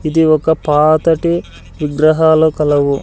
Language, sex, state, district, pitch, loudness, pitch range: Telugu, male, Andhra Pradesh, Sri Satya Sai, 155 Hz, -13 LUFS, 150-160 Hz